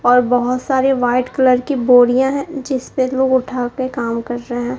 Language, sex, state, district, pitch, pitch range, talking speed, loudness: Hindi, female, Bihar, Kaimur, 255 Hz, 245-265 Hz, 190 wpm, -16 LUFS